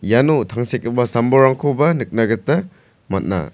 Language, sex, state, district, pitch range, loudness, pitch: Garo, male, Meghalaya, South Garo Hills, 115-145 Hz, -17 LUFS, 120 Hz